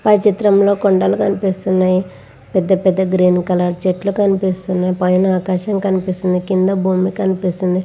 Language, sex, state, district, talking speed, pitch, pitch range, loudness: Telugu, female, Andhra Pradesh, Visakhapatnam, 105 wpm, 185 Hz, 185-195 Hz, -16 LUFS